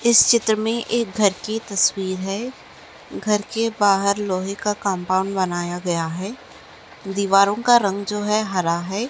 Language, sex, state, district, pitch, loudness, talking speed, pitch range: Hindi, female, Maharashtra, Aurangabad, 200 Hz, -20 LUFS, 160 wpm, 190-220 Hz